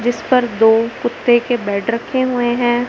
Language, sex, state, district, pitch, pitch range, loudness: Hindi, female, Punjab, Fazilka, 240 Hz, 230-245 Hz, -16 LUFS